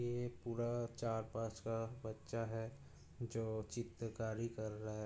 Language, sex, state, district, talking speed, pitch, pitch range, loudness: Hindi, male, Uttar Pradesh, Budaun, 155 wpm, 115 Hz, 110-120 Hz, -44 LUFS